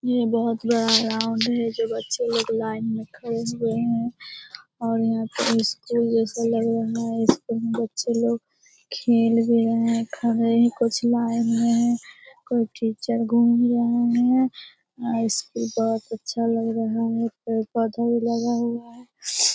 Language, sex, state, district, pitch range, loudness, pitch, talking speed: Hindi, female, Bihar, Lakhisarai, 225-235 Hz, -23 LUFS, 230 Hz, 150 wpm